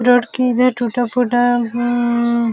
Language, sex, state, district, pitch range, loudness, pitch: Hindi, female, Uttar Pradesh, Jalaun, 235-245 Hz, -16 LUFS, 245 Hz